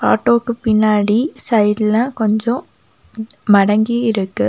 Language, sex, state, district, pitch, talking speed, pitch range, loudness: Tamil, female, Tamil Nadu, Nilgiris, 220 Hz, 80 wpm, 215-235 Hz, -15 LUFS